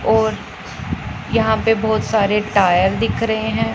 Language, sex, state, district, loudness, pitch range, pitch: Hindi, female, Punjab, Pathankot, -17 LUFS, 200-220 Hz, 220 Hz